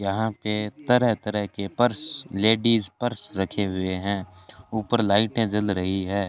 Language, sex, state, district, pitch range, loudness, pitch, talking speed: Hindi, male, Rajasthan, Bikaner, 100-115 Hz, -23 LUFS, 105 Hz, 155 wpm